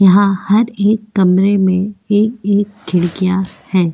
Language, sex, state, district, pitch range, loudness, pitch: Hindi, female, Goa, North and South Goa, 185-205 Hz, -14 LUFS, 195 Hz